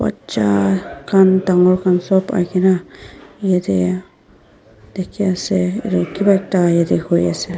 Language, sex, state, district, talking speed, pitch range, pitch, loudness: Nagamese, female, Nagaland, Dimapur, 120 wpm, 135-190 Hz, 180 Hz, -16 LUFS